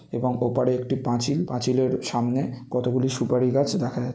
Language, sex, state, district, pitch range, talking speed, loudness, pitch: Bengali, male, West Bengal, North 24 Parganas, 125-130 Hz, 185 wpm, -24 LUFS, 125 Hz